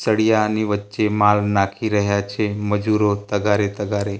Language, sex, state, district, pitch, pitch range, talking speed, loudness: Gujarati, male, Gujarat, Gandhinagar, 105 Hz, 100-105 Hz, 130 wpm, -19 LUFS